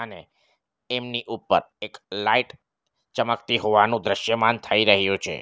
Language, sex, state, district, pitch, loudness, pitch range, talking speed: Gujarati, male, Gujarat, Valsad, 115 Hz, -22 LUFS, 105-120 Hz, 120 wpm